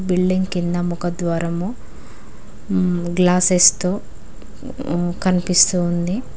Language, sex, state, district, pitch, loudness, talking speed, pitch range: Telugu, female, Telangana, Mahabubabad, 180 Hz, -18 LUFS, 75 wpm, 175-185 Hz